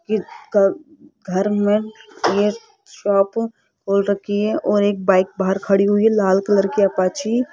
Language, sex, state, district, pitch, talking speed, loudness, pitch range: Hindi, female, Rajasthan, Jaipur, 205 Hz, 150 wpm, -19 LUFS, 195-220 Hz